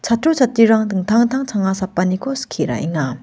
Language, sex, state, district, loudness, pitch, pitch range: Garo, female, Meghalaya, West Garo Hills, -17 LUFS, 205 Hz, 180-235 Hz